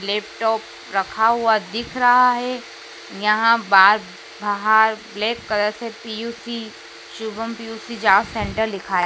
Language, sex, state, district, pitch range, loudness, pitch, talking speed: Hindi, female, Madhya Pradesh, Dhar, 210-230 Hz, -19 LUFS, 220 Hz, 125 wpm